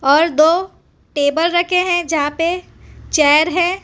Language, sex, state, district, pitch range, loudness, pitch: Hindi, female, Gujarat, Valsad, 300-350 Hz, -15 LUFS, 330 Hz